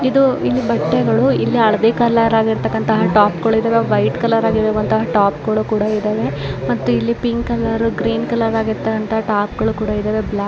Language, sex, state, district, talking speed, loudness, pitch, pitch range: Kannada, female, Karnataka, Dharwad, 175 wpm, -16 LUFS, 220 Hz, 210-225 Hz